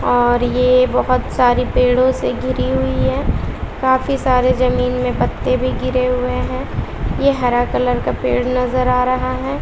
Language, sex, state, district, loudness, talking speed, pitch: Hindi, female, Bihar, West Champaran, -17 LUFS, 170 wpm, 250 Hz